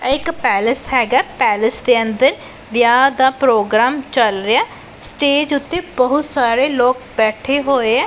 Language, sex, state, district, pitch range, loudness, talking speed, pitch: Punjabi, female, Punjab, Pathankot, 235-280 Hz, -15 LUFS, 150 wpm, 260 Hz